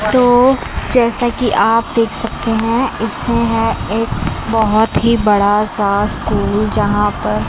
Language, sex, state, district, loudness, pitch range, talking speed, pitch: Hindi, female, Chandigarh, Chandigarh, -15 LUFS, 210-235 Hz, 135 wpm, 225 Hz